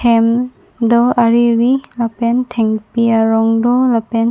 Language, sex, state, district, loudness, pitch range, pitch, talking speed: Karbi, female, Assam, Karbi Anglong, -14 LUFS, 230-245 Hz, 235 Hz, 110 wpm